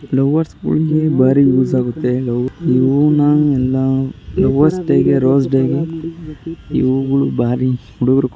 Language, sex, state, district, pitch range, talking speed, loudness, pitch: Kannada, male, Karnataka, Shimoga, 130-150 Hz, 135 wpm, -15 LUFS, 135 Hz